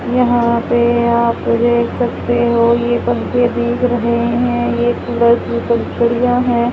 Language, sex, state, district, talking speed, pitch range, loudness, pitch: Hindi, female, Haryana, Charkhi Dadri, 140 wpm, 235-240 Hz, -15 LUFS, 235 Hz